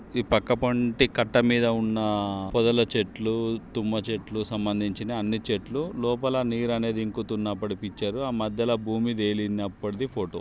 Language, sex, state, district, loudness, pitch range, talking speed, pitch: Telugu, male, Andhra Pradesh, Srikakulam, -26 LUFS, 105-120 Hz, 150 wpm, 110 Hz